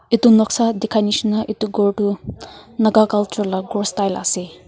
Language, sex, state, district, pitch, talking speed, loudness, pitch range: Nagamese, female, Nagaland, Kohima, 210 Hz, 155 wpm, -18 LUFS, 200-220 Hz